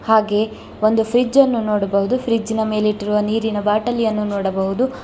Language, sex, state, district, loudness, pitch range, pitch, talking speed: Kannada, female, Karnataka, Bangalore, -18 LUFS, 210-230 Hz, 215 Hz, 120 wpm